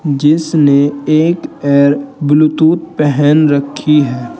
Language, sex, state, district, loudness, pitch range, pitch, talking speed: Hindi, male, Uttar Pradesh, Saharanpur, -11 LUFS, 140-155 Hz, 145 Hz, 95 wpm